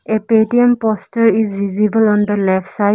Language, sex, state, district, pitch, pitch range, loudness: English, female, Arunachal Pradesh, Lower Dibang Valley, 215 Hz, 205-225 Hz, -14 LUFS